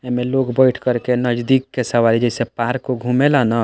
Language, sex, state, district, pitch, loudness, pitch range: Bhojpuri, male, Bihar, East Champaran, 125 Hz, -17 LUFS, 120-130 Hz